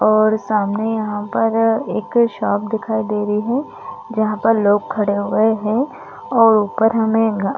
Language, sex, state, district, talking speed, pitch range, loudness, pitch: Hindi, female, Chhattisgarh, Rajnandgaon, 160 wpm, 210-225 Hz, -17 LUFS, 220 Hz